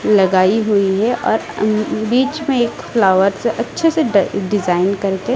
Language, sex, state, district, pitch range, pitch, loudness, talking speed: Hindi, female, Odisha, Malkangiri, 195-235 Hz, 215 Hz, -16 LUFS, 145 wpm